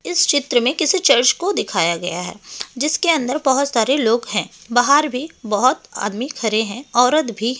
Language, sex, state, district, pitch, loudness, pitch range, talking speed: Hindi, female, Delhi, New Delhi, 255 Hz, -17 LUFS, 225-290 Hz, 190 wpm